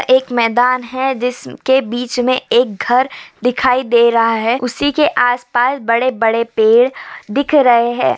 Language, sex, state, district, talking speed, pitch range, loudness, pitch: Hindi, female, Uttar Pradesh, Hamirpur, 155 wpm, 235-260 Hz, -14 LUFS, 245 Hz